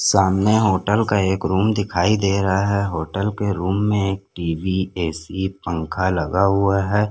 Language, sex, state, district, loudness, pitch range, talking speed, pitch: Hindi, male, Chhattisgarh, Korba, -20 LUFS, 95-100 Hz, 170 wpm, 95 Hz